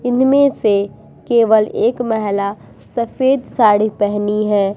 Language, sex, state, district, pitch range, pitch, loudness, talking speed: Hindi, female, Bihar, Vaishali, 205-245 Hz, 220 Hz, -15 LUFS, 125 wpm